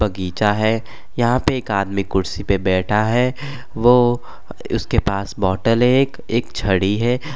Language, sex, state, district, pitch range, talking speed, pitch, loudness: Bhojpuri, male, Uttar Pradesh, Gorakhpur, 100-125 Hz, 155 wpm, 110 Hz, -18 LUFS